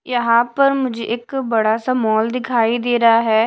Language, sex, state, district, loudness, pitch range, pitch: Hindi, female, Delhi, New Delhi, -17 LUFS, 225-255 Hz, 235 Hz